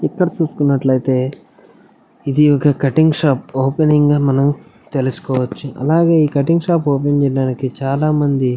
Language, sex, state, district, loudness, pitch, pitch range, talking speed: Telugu, male, Andhra Pradesh, Anantapur, -16 LUFS, 140 Hz, 135-155 Hz, 105 wpm